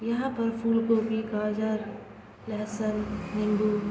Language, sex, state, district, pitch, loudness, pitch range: Hindi, female, Bihar, East Champaran, 215 Hz, -29 LUFS, 210-230 Hz